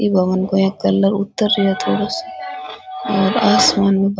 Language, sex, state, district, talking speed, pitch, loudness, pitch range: Rajasthani, female, Rajasthan, Nagaur, 215 wpm, 195 Hz, -16 LUFS, 185-200 Hz